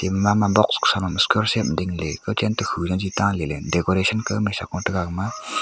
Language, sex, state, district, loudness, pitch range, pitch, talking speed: Wancho, male, Arunachal Pradesh, Longding, -22 LUFS, 90-105 Hz, 100 Hz, 225 wpm